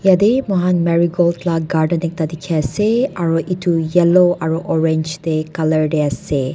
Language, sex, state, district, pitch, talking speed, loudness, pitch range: Nagamese, female, Nagaland, Dimapur, 170 Hz, 130 wpm, -17 LUFS, 160-180 Hz